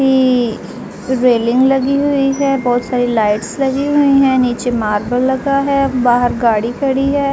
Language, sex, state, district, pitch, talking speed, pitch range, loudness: Hindi, female, Uttar Pradesh, Jalaun, 255 Hz, 145 wpm, 240-275 Hz, -14 LUFS